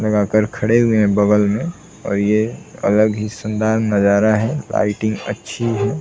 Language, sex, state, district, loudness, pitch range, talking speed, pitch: Hindi, male, Bihar, Saran, -17 LUFS, 105-110 Hz, 170 wpm, 110 Hz